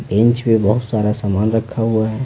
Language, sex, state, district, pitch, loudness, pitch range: Hindi, male, Bihar, Patna, 110 Hz, -17 LUFS, 105-115 Hz